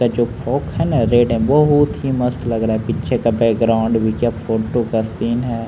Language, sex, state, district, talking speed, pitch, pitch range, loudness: Hindi, male, Bihar, Patna, 245 wpm, 120 Hz, 115-125 Hz, -17 LUFS